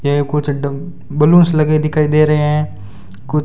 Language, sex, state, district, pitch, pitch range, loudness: Hindi, male, Rajasthan, Bikaner, 150 Hz, 140-155 Hz, -14 LUFS